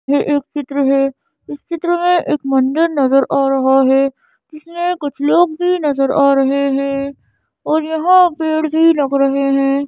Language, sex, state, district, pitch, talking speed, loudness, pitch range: Hindi, female, Madhya Pradesh, Bhopal, 285 Hz, 170 wpm, -15 LUFS, 275-330 Hz